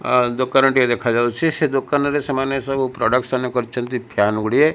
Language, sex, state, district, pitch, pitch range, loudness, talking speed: Odia, male, Odisha, Malkangiri, 130 Hz, 120-135 Hz, -19 LUFS, 140 wpm